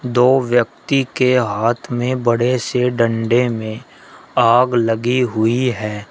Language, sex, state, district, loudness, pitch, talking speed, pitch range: Hindi, male, Uttar Pradesh, Shamli, -17 LUFS, 120 Hz, 130 wpm, 115-125 Hz